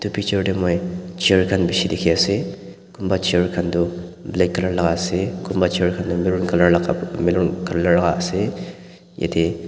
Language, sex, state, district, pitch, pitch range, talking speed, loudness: Nagamese, male, Nagaland, Dimapur, 90 Hz, 85-95 Hz, 185 wpm, -20 LUFS